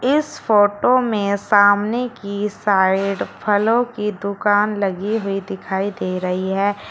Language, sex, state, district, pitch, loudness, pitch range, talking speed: Hindi, female, Uttar Pradesh, Shamli, 205 Hz, -19 LUFS, 195-215 Hz, 130 wpm